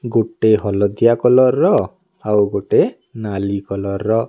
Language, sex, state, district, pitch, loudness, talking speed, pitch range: Odia, male, Odisha, Nuapada, 105 Hz, -16 LUFS, 110 wpm, 100-115 Hz